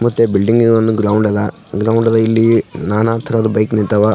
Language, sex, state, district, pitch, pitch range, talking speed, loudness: Kannada, male, Karnataka, Gulbarga, 110 Hz, 105-115 Hz, 175 wpm, -14 LUFS